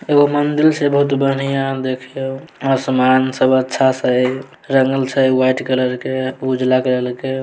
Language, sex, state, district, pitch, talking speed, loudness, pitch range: Maithili, male, Bihar, Samastipur, 130 Hz, 160 wpm, -16 LUFS, 130-135 Hz